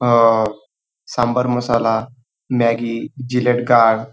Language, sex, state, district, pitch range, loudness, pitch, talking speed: Marathi, male, Maharashtra, Dhule, 115-125 Hz, -17 LUFS, 120 Hz, 100 wpm